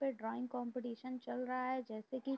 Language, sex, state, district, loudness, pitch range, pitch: Hindi, female, Uttar Pradesh, Jyotiba Phule Nagar, -42 LUFS, 245-260 Hz, 255 Hz